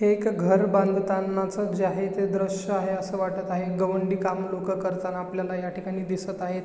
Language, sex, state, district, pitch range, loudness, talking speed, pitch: Marathi, male, Maharashtra, Chandrapur, 185-195 Hz, -26 LUFS, 180 wpm, 190 Hz